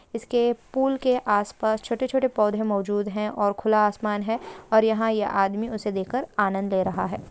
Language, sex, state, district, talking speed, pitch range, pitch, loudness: Hindi, female, Bihar, Samastipur, 190 wpm, 205-235 Hz, 215 Hz, -24 LUFS